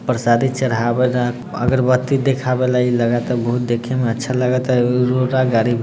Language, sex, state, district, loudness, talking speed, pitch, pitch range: Bhojpuri, male, Bihar, Sitamarhi, -17 LUFS, 155 wpm, 125 Hz, 120-130 Hz